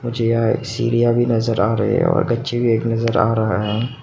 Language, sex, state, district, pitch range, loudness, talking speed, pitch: Hindi, male, Arunachal Pradesh, Papum Pare, 115-120 Hz, -18 LUFS, 210 wpm, 115 Hz